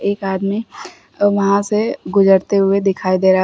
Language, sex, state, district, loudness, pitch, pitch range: Hindi, female, Uttar Pradesh, Shamli, -16 LUFS, 195 Hz, 190-200 Hz